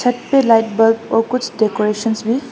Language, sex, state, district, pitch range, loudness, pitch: Hindi, female, Assam, Hailakandi, 220-245 Hz, -16 LUFS, 225 Hz